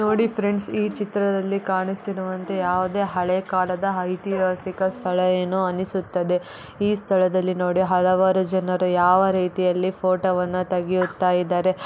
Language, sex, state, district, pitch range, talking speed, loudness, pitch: Kannada, female, Karnataka, Bellary, 180-195 Hz, 120 wpm, -22 LUFS, 185 Hz